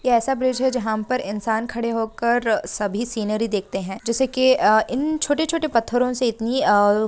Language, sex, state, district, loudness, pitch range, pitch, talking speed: Hindi, female, Bihar, Bhagalpur, -21 LUFS, 215-255 Hz, 235 Hz, 205 wpm